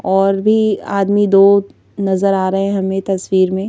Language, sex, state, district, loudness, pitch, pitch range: Hindi, female, Madhya Pradesh, Bhopal, -14 LUFS, 195 Hz, 190-200 Hz